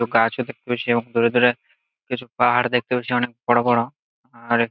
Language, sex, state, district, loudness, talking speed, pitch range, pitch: Bengali, male, West Bengal, Jalpaiguri, -21 LUFS, 190 wpm, 120-125 Hz, 120 Hz